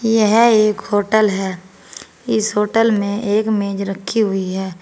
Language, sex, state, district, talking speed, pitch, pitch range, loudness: Hindi, female, Uttar Pradesh, Saharanpur, 150 wpm, 205 Hz, 195-220 Hz, -17 LUFS